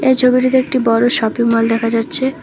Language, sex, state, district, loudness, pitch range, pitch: Bengali, female, West Bengal, Alipurduar, -14 LUFS, 230-260 Hz, 245 Hz